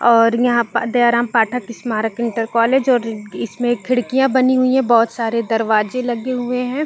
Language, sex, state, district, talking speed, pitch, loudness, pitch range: Hindi, female, Chhattisgarh, Balrampur, 185 wpm, 235 Hz, -17 LUFS, 230-250 Hz